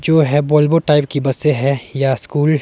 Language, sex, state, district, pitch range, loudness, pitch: Hindi, male, Himachal Pradesh, Shimla, 135-150 Hz, -15 LUFS, 145 Hz